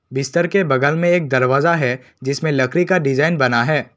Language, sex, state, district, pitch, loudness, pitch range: Hindi, male, Assam, Kamrup Metropolitan, 140 Hz, -17 LUFS, 130-170 Hz